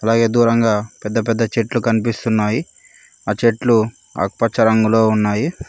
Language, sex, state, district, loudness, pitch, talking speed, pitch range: Telugu, male, Telangana, Mahabubabad, -17 LUFS, 115 Hz, 125 wpm, 110-115 Hz